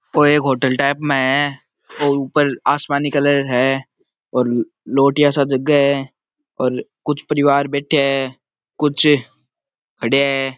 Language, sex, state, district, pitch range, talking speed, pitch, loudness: Marwari, male, Rajasthan, Nagaur, 135-145 Hz, 130 wpm, 140 Hz, -17 LUFS